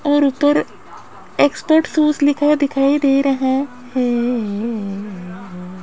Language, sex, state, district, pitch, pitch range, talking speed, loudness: Hindi, female, Rajasthan, Jaipur, 270 Hz, 220-290 Hz, 95 wpm, -17 LUFS